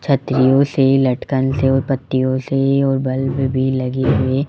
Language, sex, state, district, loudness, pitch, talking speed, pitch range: Hindi, male, Rajasthan, Jaipur, -17 LUFS, 135 Hz, 160 wpm, 130-135 Hz